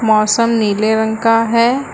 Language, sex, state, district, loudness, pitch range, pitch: Hindi, female, Uttar Pradesh, Lucknow, -14 LUFS, 220-230 Hz, 225 Hz